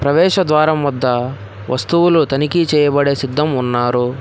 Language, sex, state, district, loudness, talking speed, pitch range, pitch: Telugu, male, Telangana, Hyderabad, -15 LUFS, 115 wpm, 125-155 Hz, 140 Hz